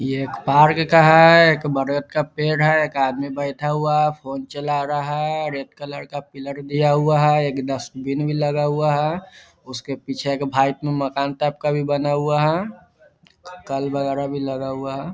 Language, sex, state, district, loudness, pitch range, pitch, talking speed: Hindi, male, Bihar, Vaishali, -19 LUFS, 140-150 Hz, 145 Hz, 195 wpm